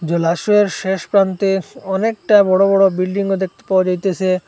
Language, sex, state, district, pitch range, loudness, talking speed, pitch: Bengali, male, Assam, Hailakandi, 185-200 Hz, -16 LUFS, 135 wpm, 190 Hz